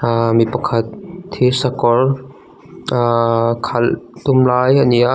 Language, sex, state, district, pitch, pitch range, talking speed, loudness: Mizo, male, Mizoram, Aizawl, 125 Hz, 115-130 Hz, 130 wpm, -15 LUFS